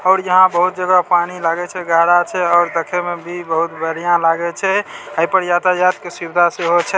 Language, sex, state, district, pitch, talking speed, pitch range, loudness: Maithili, male, Bihar, Samastipur, 175 Hz, 205 wpm, 170-180 Hz, -16 LUFS